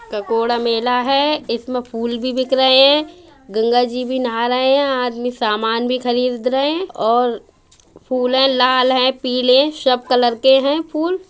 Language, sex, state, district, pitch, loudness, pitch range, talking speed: Bundeli, female, Uttar Pradesh, Budaun, 255 Hz, -16 LUFS, 245-270 Hz, 185 wpm